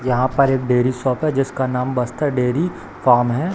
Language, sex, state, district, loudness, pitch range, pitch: Hindi, male, Bihar, Samastipur, -19 LUFS, 125-140 Hz, 130 Hz